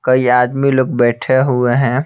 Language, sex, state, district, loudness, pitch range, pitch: Hindi, male, Bihar, Patna, -14 LUFS, 125-130 Hz, 130 Hz